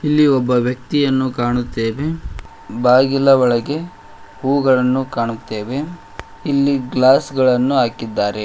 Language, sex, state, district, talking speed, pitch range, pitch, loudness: Kannada, male, Karnataka, Koppal, 85 wpm, 120-140 Hz, 130 Hz, -17 LUFS